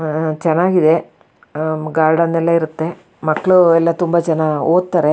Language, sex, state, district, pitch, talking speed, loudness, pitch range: Kannada, female, Karnataka, Shimoga, 160 Hz, 115 wpm, -15 LUFS, 155-170 Hz